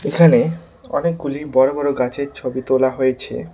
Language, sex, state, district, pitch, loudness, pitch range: Bengali, male, West Bengal, Alipurduar, 140 Hz, -18 LUFS, 130-165 Hz